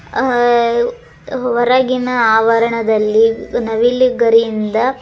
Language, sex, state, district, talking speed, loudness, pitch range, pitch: Kannada, male, Karnataka, Dharwad, 70 wpm, -14 LUFS, 225-250 Hz, 235 Hz